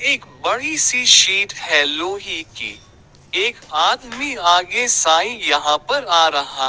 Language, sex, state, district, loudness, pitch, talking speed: Hindi, male, Haryana, Charkhi Dadri, -16 LUFS, 225 Hz, 135 wpm